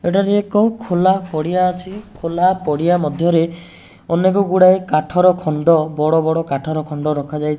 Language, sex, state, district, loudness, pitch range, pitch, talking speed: Odia, male, Odisha, Nuapada, -16 LUFS, 155-185 Hz, 170 Hz, 140 wpm